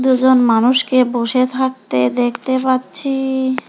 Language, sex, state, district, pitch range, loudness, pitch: Bengali, female, West Bengal, Alipurduar, 245-260 Hz, -15 LUFS, 255 Hz